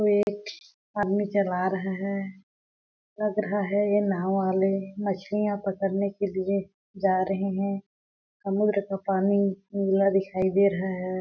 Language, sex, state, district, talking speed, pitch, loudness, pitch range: Hindi, female, Chhattisgarh, Balrampur, 145 wpm, 195 Hz, -26 LUFS, 190-205 Hz